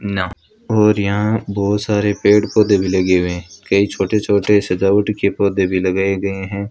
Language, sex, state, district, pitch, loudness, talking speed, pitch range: Hindi, female, Rajasthan, Bikaner, 100 Hz, -16 LUFS, 180 wpm, 95-105 Hz